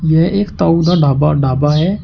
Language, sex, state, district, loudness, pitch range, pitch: Hindi, male, Uttar Pradesh, Shamli, -13 LUFS, 145-175 Hz, 160 Hz